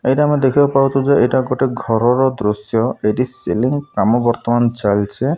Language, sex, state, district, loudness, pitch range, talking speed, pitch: Odia, male, Odisha, Malkangiri, -16 LUFS, 115-135 Hz, 165 wpm, 125 Hz